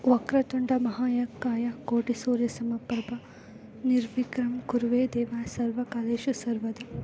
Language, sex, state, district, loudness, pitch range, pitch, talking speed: Kannada, female, Karnataka, Bellary, -29 LUFS, 235-250 Hz, 240 Hz, 110 wpm